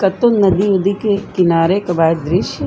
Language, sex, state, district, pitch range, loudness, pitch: Bhojpuri, female, Uttar Pradesh, Gorakhpur, 175-200 Hz, -15 LUFS, 190 Hz